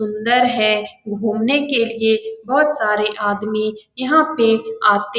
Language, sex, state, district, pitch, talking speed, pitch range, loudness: Hindi, female, Bihar, Saran, 220 Hz, 140 wpm, 215-245 Hz, -17 LUFS